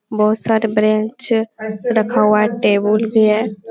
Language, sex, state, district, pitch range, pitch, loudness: Hindi, female, Bihar, Jamui, 215-225 Hz, 220 Hz, -16 LUFS